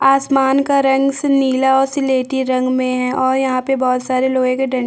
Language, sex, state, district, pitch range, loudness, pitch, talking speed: Hindi, female, Chhattisgarh, Bastar, 255-270 Hz, -16 LUFS, 265 Hz, 220 wpm